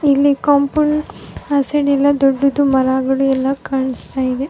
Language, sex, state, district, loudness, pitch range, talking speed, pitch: Kannada, female, Karnataka, Raichur, -16 LUFS, 265-285 Hz, 145 wpm, 275 Hz